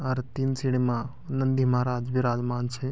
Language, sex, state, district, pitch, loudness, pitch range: Garhwali, male, Uttarakhand, Tehri Garhwal, 125 Hz, -27 LUFS, 125-130 Hz